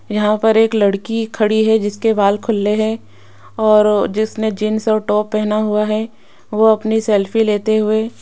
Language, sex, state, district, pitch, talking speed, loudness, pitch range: Hindi, female, Rajasthan, Jaipur, 215 Hz, 175 wpm, -16 LUFS, 210-220 Hz